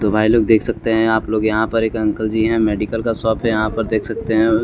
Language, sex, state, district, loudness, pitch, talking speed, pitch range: Hindi, male, Chandigarh, Chandigarh, -17 LUFS, 110 Hz, 300 wpm, 110-115 Hz